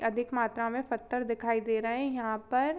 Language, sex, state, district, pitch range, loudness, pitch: Hindi, female, Jharkhand, Sahebganj, 225-250 Hz, -32 LUFS, 235 Hz